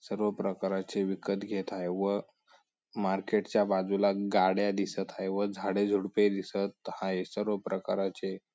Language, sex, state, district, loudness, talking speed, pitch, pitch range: Marathi, male, Maharashtra, Sindhudurg, -31 LUFS, 125 wpm, 100 Hz, 95-100 Hz